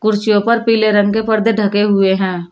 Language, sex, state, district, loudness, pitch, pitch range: Hindi, female, Uttar Pradesh, Shamli, -14 LUFS, 210 Hz, 200-220 Hz